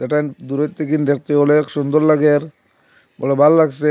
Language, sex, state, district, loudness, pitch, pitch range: Bengali, male, Assam, Hailakandi, -16 LUFS, 150 Hz, 145-150 Hz